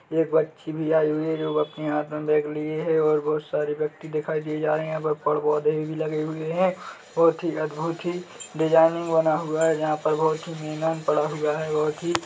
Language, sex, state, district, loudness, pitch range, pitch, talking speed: Hindi, male, Chhattisgarh, Bilaspur, -24 LUFS, 150-160 Hz, 155 Hz, 230 wpm